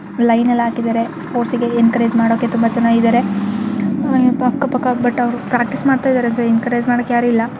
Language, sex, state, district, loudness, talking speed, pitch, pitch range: Kannada, female, Karnataka, Chamarajanagar, -16 LUFS, 180 wpm, 240 Hz, 230-245 Hz